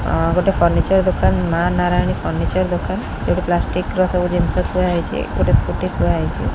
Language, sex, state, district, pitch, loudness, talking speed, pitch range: Odia, female, Odisha, Khordha, 180 Hz, -18 LUFS, 175 wpm, 165-180 Hz